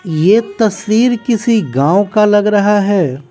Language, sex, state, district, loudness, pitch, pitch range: Hindi, male, Bihar, West Champaran, -12 LUFS, 205 Hz, 190-220 Hz